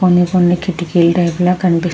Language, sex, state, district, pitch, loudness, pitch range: Telugu, female, Andhra Pradesh, Krishna, 175 Hz, -14 LUFS, 175-180 Hz